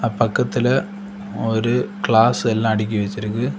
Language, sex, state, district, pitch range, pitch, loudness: Tamil, male, Tamil Nadu, Kanyakumari, 110-125 Hz, 115 Hz, -19 LUFS